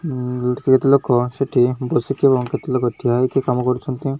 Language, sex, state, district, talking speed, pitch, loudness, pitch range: Odia, male, Odisha, Malkangiri, 155 wpm, 130 Hz, -18 LUFS, 125-135 Hz